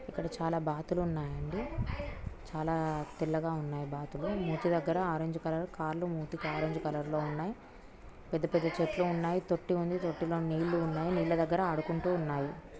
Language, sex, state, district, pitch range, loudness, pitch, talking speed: Telugu, female, Telangana, Nalgonda, 155-170 Hz, -34 LUFS, 165 Hz, 145 wpm